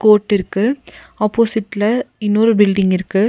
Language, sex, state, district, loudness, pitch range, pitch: Tamil, female, Tamil Nadu, Nilgiris, -16 LUFS, 200-225 Hz, 210 Hz